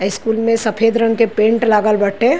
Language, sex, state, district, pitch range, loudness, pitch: Bhojpuri, female, Uttar Pradesh, Ghazipur, 215-230 Hz, -15 LUFS, 225 Hz